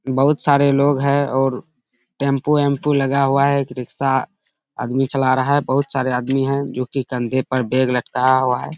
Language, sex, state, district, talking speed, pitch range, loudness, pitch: Hindi, male, Bihar, Bhagalpur, 185 wpm, 130-140 Hz, -18 LUFS, 135 Hz